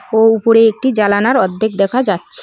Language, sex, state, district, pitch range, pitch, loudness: Bengali, female, West Bengal, Cooch Behar, 205-230 Hz, 225 Hz, -13 LUFS